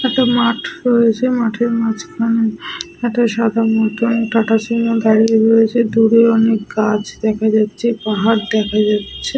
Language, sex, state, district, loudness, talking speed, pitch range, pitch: Bengali, female, Jharkhand, Sahebganj, -15 LUFS, 130 wpm, 220-235 Hz, 225 Hz